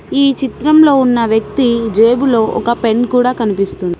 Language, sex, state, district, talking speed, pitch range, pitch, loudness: Telugu, female, Telangana, Mahabubabad, 165 wpm, 225-265 Hz, 235 Hz, -12 LUFS